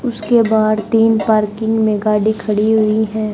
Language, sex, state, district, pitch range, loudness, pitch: Hindi, male, Haryana, Jhajjar, 215-225 Hz, -15 LUFS, 220 Hz